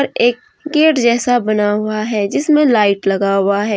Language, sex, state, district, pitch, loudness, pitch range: Hindi, female, Jharkhand, Deoghar, 220 Hz, -14 LUFS, 205-275 Hz